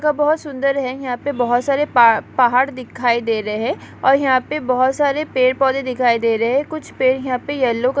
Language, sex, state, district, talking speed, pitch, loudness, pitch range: Hindi, female, Uttarakhand, Tehri Garhwal, 230 wpm, 260 Hz, -17 LUFS, 245-275 Hz